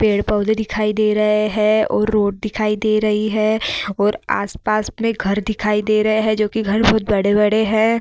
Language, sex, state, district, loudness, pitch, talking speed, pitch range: Hindi, female, Bihar, Vaishali, -17 LUFS, 215 Hz, 195 wpm, 210-220 Hz